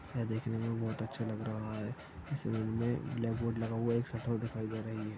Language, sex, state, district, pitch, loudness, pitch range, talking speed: Hindi, male, Chhattisgarh, Kabirdham, 115 Hz, -37 LUFS, 110-115 Hz, 245 wpm